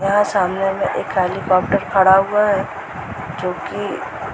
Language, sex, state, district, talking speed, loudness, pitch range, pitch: Hindi, female, Bihar, Muzaffarpur, 150 wpm, -18 LUFS, 180-195 Hz, 190 Hz